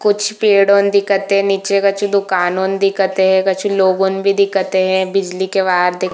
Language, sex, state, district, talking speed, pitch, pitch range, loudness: Hindi, female, Chhattisgarh, Bilaspur, 175 wpm, 195 Hz, 190-200 Hz, -14 LUFS